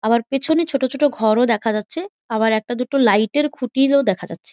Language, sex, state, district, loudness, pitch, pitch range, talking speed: Bengali, female, West Bengal, Malda, -19 LUFS, 245 Hz, 220-280 Hz, 200 wpm